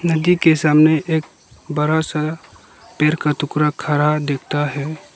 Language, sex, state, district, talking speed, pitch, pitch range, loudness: Hindi, male, Arunachal Pradesh, Lower Dibang Valley, 140 wpm, 150 Hz, 150-160 Hz, -18 LUFS